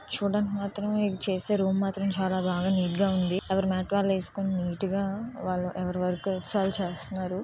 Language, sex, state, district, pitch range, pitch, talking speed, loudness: Telugu, female, Andhra Pradesh, Visakhapatnam, 185-200 Hz, 190 Hz, 175 wpm, -28 LUFS